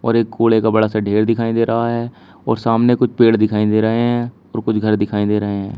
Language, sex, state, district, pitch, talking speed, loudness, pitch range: Hindi, male, Uttar Pradesh, Shamli, 110 Hz, 270 wpm, -16 LUFS, 105-115 Hz